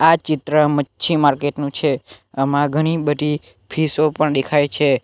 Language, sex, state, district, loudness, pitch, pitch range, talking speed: Gujarati, male, Gujarat, Navsari, -18 LUFS, 150 Hz, 145-155 Hz, 155 wpm